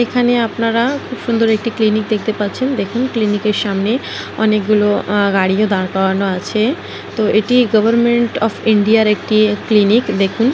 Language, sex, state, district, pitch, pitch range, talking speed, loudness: Bengali, female, West Bengal, North 24 Parganas, 215 Hz, 205-230 Hz, 135 wpm, -15 LUFS